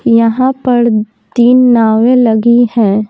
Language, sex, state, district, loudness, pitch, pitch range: Hindi, female, Bihar, Patna, -9 LUFS, 235 Hz, 220-245 Hz